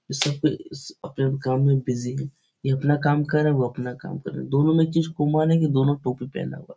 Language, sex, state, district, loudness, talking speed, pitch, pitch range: Hindi, male, Bihar, Supaul, -23 LUFS, 290 wpm, 145 Hz, 135-155 Hz